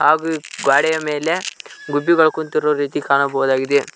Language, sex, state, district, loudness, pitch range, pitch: Kannada, male, Karnataka, Koppal, -18 LUFS, 140-160 Hz, 150 Hz